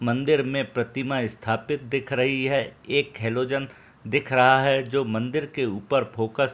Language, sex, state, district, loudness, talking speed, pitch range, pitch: Hindi, male, Jharkhand, Jamtara, -24 LUFS, 165 wpm, 120-140 Hz, 135 Hz